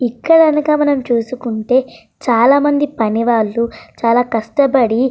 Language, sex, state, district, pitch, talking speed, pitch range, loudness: Telugu, female, Andhra Pradesh, Srikakulam, 245 Hz, 115 wpm, 230-285 Hz, -14 LUFS